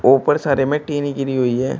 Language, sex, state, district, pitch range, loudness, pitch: Hindi, male, Uttar Pradesh, Shamli, 130-145 Hz, -18 LUFS, 135 Hz